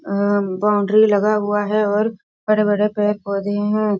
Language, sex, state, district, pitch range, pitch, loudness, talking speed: Hindi, female, Bihar, East Champaran, 205-210 Hz, 210 Hz, -18 LUFS, 135 wpm